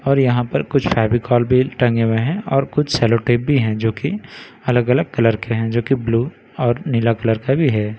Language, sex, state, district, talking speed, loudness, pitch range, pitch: Hindi, male, Bihar, Katihar, 225 wpm, -18 LUFS, 115-135 Hz, 120 Hz